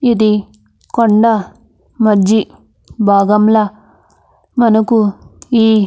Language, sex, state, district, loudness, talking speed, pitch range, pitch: Telugu, female, Andhra Pradesh, Anantapur, -13 LUFS, 70 wpm, 210-230 Hz, 215 Hz